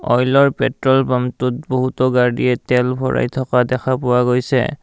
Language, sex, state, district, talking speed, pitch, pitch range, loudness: Assamese, male, Assam, Kamrup Metropolitan, 135 wpm, 130 Hz, 125-130 Hz, -17 LUFS